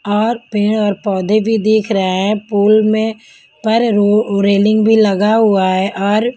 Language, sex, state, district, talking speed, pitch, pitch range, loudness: Hindi, female, Punjab, Kapurthala, 160 wpm, 210 Hz, 200-220 Hz, -13 LUFS